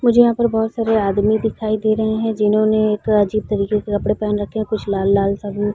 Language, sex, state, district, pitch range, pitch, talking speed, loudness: Hindi, female, Chhattisgarh, Balrampur, 205-220 Hz, 215 Hz, 260 wpm, -18 LUFS